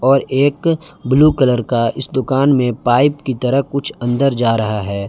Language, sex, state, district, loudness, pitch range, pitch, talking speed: Hindi, male, Jharkhand, Palamu, -16 LUFS, 120-140 Hz, 130 Hz, 190 wpm